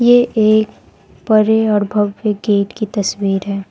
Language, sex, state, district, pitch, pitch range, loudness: Hindi, female, Arunachal Pradesh, Lower Dibang Valley, 210 Hz, 200-220 Hz, -15 LUFS